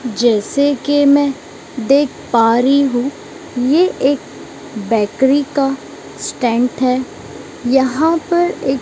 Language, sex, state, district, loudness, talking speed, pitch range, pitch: Hindi, female, Maharashtra, Mumbai Suburban, -15 LUFS, 110 wpm, 245-290 Hz, 270 Hz